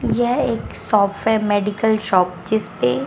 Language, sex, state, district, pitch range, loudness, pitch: Hindi, female, Bihar, Katihar, 185-220 Hz, -19 LUFS, 205 Hz